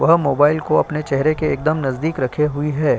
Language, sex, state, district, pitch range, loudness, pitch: Hindi, male, Uttar Pradesh, Jyotiba Phule Nagar, 140-155 Hz, -18 LUFS, 150 Hz